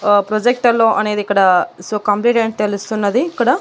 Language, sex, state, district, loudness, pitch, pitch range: Telugu, female, Andhra Pradesh, Annamaya, -15 LUFS, 210 Hz, 205-235 Hz